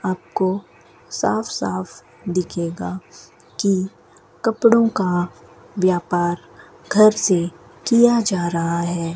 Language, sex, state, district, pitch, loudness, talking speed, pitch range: Hindi, female, Rajasthan, Bikaner, 175 Hz, -20 LUFS, 90 wpm, 165-195 Hz